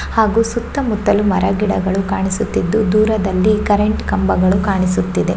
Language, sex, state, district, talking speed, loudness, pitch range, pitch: Kannada, female, Karnataka, Shimoga, 90 wpm, -16 LUFS, 190-215 Hz, 205 Hz